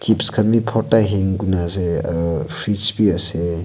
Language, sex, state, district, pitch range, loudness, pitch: Nagamese, male, Nagaland, Kohima, 85-105 Hz, -17 LUFS, 95 Hz